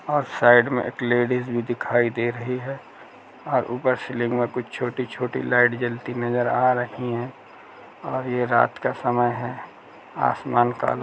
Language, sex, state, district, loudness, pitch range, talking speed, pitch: Hindi, male, Uttar Pradesh, Jalaun, -23 LUFS, 120-125 Hz, 175 wpm, 120 Hz